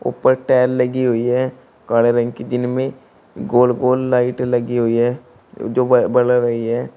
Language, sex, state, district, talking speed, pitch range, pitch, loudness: Hindi, male, Uttar Pradesh, Shamli, 170 wpm, 120-125 Hz, 125 Hz, -17 LUFS